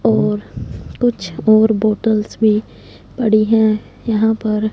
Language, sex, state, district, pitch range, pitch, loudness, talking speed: Hindi, female, Punjab, Fazilka, 210-220 Hz, 215 Hz, -16 LUFS, 115 wpm